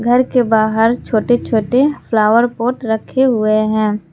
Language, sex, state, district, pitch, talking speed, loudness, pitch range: Hindi, female, Jharkhand, Palamu, 230 Hz, 145 wpm, -14 LUFS, 215-245 Hz